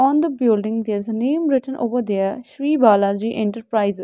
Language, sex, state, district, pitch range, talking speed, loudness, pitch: English, female, Haryana, Rohtak, 210-265 Hz, 195 wpm, -19 LUFS, 225 Hz